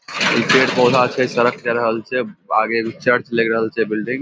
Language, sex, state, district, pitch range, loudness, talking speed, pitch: Maithili, male, Bihar, Samastipur, 115-125 Hz, -17 LUFS, 270 wpm, 120 Hz